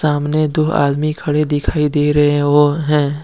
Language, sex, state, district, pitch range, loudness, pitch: Hindi, male, Jharkhand, Deoghar, 145-150 Hz, -15 LUFS, 150 Hz